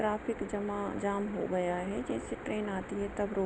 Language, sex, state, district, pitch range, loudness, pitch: Hindi, female, Jharkhand, Sahebganj, 195-205 Hz, -35 LUFS, 200 Hz